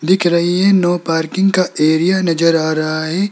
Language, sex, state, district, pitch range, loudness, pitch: Hindi, male, Rajasthan, Jaipur, 160-185 Hz, -14 LUFS, 170 Hz